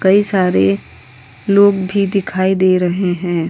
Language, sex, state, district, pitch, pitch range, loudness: Hindi, female, Uttar Pradesh, Hamirpur, 185 Hz, 165-195 Hz, -14 LUFS